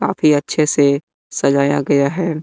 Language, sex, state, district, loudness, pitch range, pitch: Hindi, male, Bihar, West Champaran, -16 LUFS, 140-155 Hz, 145 Hz